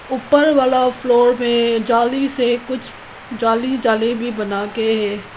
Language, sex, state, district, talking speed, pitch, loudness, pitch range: Hindi, female, Arunachal Pradesh, Lower Dibang Valley, 135 wpm, 240 Hz, -17 LUFS, 225-255 Hz